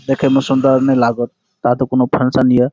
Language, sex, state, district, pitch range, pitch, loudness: Maithili, male, Bihar, Saharsa, 125-135 Hz, 130 Hz, -14 LUFS